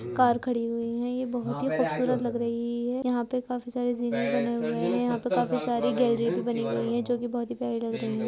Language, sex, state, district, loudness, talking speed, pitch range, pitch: Hindi, female, Uttar Pradesh, Ghazipur, -28 LUFS, 255 wpm, 230-245 Hz, 240 Hz